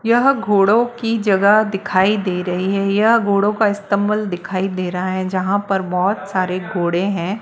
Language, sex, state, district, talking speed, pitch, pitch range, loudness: Hindi, female, Maharashtra, Washim, 180 wpm, 195 Hz, 185-210 Hz, -17 LUFS